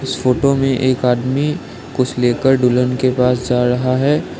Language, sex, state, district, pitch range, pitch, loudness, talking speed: Hindi, male, Assam, Sonitpur, 125-135 Hz, 130 Hz, -16 LUFS, 180 wpm